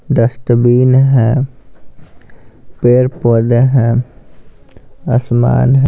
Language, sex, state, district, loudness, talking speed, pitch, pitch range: Hindi, male, Bihar, Patna, -12 LUFS, 60 wpm, 125 Hz, 120-130 Hz